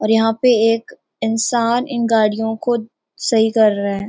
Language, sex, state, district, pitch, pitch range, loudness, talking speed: Hindi, female, Uttarakhand, Uttarkashi, 225 Hz, 220-235 Hz, -17 LUFS, 175 wpm